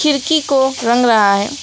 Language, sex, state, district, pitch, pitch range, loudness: Hindi, female, West Bengal, Alipurduar, 265 Hz, 230-290 Hz, -13 LUFS